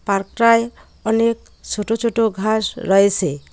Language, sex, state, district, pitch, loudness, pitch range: Bengali, female, West Bengal, Cooch Behar, 220 Hz, -18 LUFS, 200-230 Hz